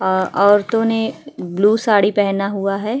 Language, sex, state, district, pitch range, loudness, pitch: Hindi, female, Bihar, Vaishali, 195-220 Hz, -16 LUFS, 205 Hz